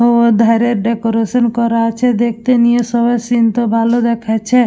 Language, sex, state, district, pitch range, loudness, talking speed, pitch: Bengali, female, West Bengal, Dakshin Dinajpur, 230-240 Hz, -13 LUFS, 140 wpm, 235 Hz